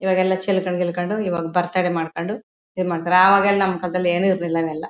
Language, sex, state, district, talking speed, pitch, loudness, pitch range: Kannada, female, Karnataka, Mysore, 185 wpm, 180 Hz, -20 LUFS, 175-190 Hz